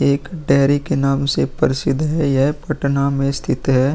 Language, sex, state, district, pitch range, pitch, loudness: Hindi, male, Bihar, Vaishali, 140-150 Hz, 140 Hz, -18 LUFS